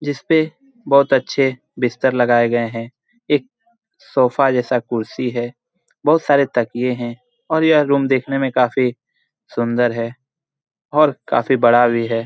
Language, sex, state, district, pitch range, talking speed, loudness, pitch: Hindi, male, Bihar, Jamui, 120-145 Hz, 155 wpm, -17 LUFS, 130 Hz